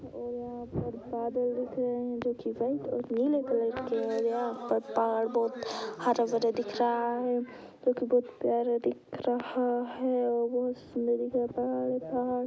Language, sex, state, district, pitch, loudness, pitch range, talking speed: Hindi, female, Bihar, East Champaran, 245 Hz, -31 LUFS, 235-250 Hz, 170 wpm